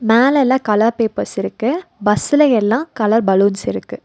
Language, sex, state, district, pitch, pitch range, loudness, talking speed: Tamil, female, Tamil Nadu, Nilgiris, 230 Hz, 210-265 Hz, -16 LUFS, 150 wpm